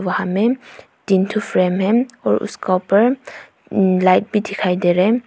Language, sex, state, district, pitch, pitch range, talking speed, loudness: Hindi, female, Arunachal Pradesh, Papum Pare, 195 Hz, 185-225 Hz, 170 wpm, -17 LUFS